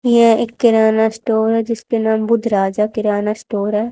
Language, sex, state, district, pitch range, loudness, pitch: Hindi, female, Haryana, Rohtak, 210-230 Hz, -16 LUFS, 220 Hz